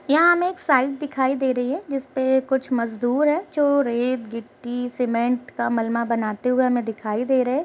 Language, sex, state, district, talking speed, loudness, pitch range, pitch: Hindi, female, Uttar Pradesh, Gorakhpur, 205 wpm, -22 LUFS, 240-275 Hz, 255 Hz